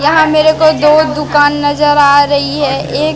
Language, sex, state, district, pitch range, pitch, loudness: Hindi, female, Madhya Pradesh, Katni, 290-310 Hz, 295 Hz, -10 LUFS